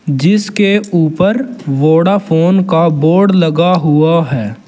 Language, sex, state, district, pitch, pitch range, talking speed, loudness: Hindi, male, Uttar Pradesh, Saharanpur, 170 Hz, 155-195 Hz, 100 wpm, -11 LUFS